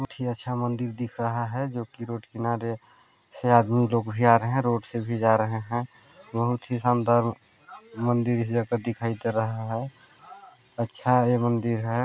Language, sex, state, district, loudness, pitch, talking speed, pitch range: Hindi, male, Chhattisgarh, Balrampur, -26 LUFS, 120 Hz, 175 wpm, 115-120 Hz